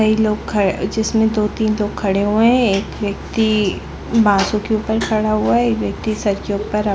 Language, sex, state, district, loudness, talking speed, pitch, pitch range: Hindi, female, Chhattisgarh, Balrampur, -17 LUFS, 175 wpm, 210 Hz, 200-220 Hz